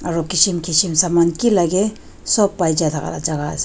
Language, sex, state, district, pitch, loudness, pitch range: Nagamese, female, Nagaland, Dimapur, 170 Hz, -17 LUFS, 160-190 Hz